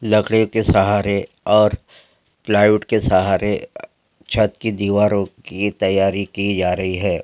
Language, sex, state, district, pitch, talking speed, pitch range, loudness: Hindi, male, Bihar, Gopalganj, 100 Hz, 140 wpm, 95-105 Hz, -18 LUFS